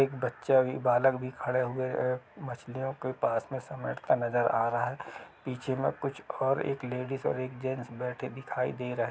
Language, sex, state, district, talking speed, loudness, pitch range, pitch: Hindi, male, Chhattisgarh, Rajnandgaon, 200 wpm, -31 LUFS, 125-135 Hz, 130 Hz